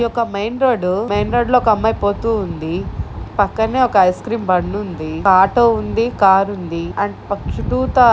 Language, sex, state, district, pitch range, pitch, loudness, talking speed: Telugu, female, Andhra Pradesh, Guntur, 185-230 Hz, 205 Hz, -17 LUFS, 140 wpm